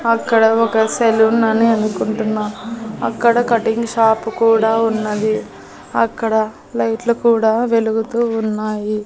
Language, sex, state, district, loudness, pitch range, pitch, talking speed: Telugu, female, Andhra Pradesh, Annamaya, -16 LUFS, 220-230 Hz, 225 Hz, 100 wpm